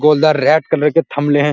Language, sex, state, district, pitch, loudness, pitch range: Hindi, male, Uttar Pradesh, Muzaffarnagar, 150 Hz, -14 LUFS, 145-155 Hz